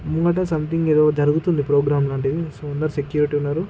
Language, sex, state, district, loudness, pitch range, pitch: Telugu, male, Andhra Pradesh, Guntur, -20 LUFS, 145-160 Hz, 150 Hz